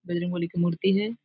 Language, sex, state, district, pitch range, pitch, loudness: Hindi, female, Chhattisgarh, Raigarh, 175-195 Hz, 175 Hz, -26 LUFS